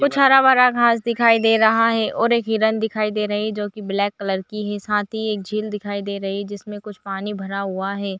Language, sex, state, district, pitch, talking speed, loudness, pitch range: Hindi, female, Chhattisgarh, Bilaspur, 210 Hz, 250 wpm, -19 LUFS, 200-225 Hz